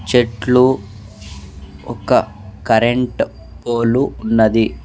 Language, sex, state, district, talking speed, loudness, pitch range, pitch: Telugu, male, Andhra Pradesh, Sri Satya Sai, 75 wpm, -16 LUFS, 100-120 Hz, 110 Hz